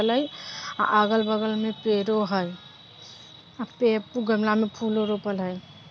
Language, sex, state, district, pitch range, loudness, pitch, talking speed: Bajjika, female, Bihar, Vaishali, 205-220 Hz, -25 LUFS, 215 Hz, 120 wpm